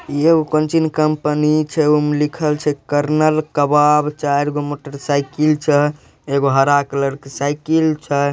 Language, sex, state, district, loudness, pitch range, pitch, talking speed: Hindi, male, Bihar, Begusarai, -17 LUFS, 145-155 Hz, 150 Hz, 135 wpm